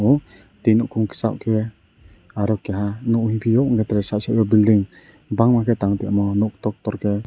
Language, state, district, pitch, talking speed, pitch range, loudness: Kokborok, Tripura, West Tripura, 110 Hz, 155 wpm, 100-115 Hz, -20 LUFS